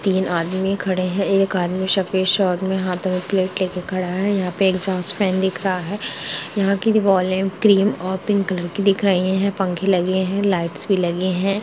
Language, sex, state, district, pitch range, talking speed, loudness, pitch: Hindi, female, Chhattisgarh, Rajnandgaon, 185-195 Hz, 205 wpm, -19 LUFS, 190 Hz